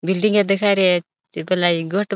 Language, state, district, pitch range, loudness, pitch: Bhili, Maharashtra, Dhule, 175-200 Hz, -18 LUFS, 190 Hz